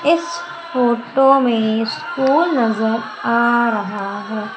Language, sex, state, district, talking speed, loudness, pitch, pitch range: Hindi, female, Madhya Pradesh, Umaria, 105 wpm, -17 LUFS, 235 Hz, 220-275 Hz